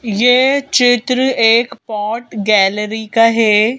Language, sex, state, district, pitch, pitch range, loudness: Hindi, female, Madhya Pradesh, Bhopal, 230 Hz, 215-245 Hz, -13 LUFS